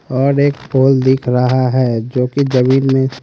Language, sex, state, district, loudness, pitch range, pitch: Hindi, male, Haryana, Rohtak, -14 LUFS, 125-135 Hz, 130 Hz